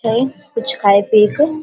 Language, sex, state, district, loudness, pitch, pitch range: Maithili, female, Bihar, Vaishali, -14 LUFS, 230 Hz, 210-265 Hz